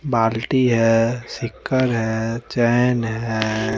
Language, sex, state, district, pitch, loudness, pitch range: Hindi, male, Chandigarh, Chandigarh, 115 Hz, -20 LUFS, 115-125 Hz